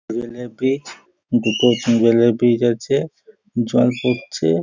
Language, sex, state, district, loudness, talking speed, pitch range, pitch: Bengali, male, West Bengal, Jhargram, -18 LUFS, 140 wpm, 115-125 Hz, 120 Hz